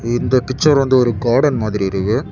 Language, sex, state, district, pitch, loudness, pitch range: Tamil, male, Tamil Nadu, Kanyakumari, 120 Hz, -15 LUFS, 110-130 Hz